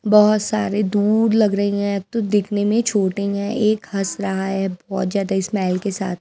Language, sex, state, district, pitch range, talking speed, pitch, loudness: Hindi, female, Himachal Pradesh, Shimla, 195-210 Hz, 195 wpm, 200 Hz, -19 LUFS